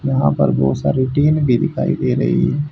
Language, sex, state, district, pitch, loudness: Hindi, male, Haryana, Charkhi Dadri, 135 Hz, -16 LUFS